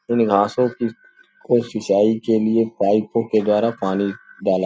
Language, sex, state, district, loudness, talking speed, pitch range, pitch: Hindi, male, Uttar Pradesh, Gorakhpur, -19 LUFS, 165 wpm, 100-115 Hz, 110 Hz